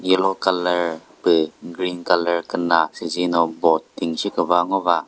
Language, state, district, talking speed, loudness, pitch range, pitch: Chakhesang, Nagaland, Dimapur, 155 wpm, -20 LUFS, 85-90 Hz, 85 Hz